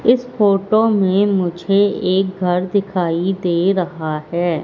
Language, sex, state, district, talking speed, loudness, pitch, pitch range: Hindi, female, Madhya Pradesh, Katni, 130 wpm, -17 LUFS, 190 Hz, 175-200 Hz